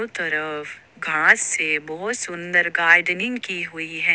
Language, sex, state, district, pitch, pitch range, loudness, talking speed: Hindi, female, Jharkhand, Ranchi, 175 Hz, 160-180 Hz, -20 LUFS, 130 wpm